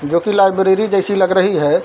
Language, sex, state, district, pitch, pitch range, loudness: Hindi, male, Bihar, Darbhanga, 195 Hz, 185-200 Hz, -14 LUFS